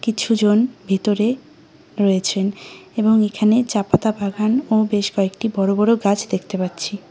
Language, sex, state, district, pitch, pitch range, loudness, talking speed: Bengali, female, West Bengal, Cooch Behar, 210 Hz, 195-220 Hz, -19 LUFS, 135 wpm